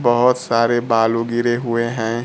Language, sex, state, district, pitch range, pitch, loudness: Hindi, male, Bihar, Kaimur, 115-120 Hz, 115 Hz, -18 LUFS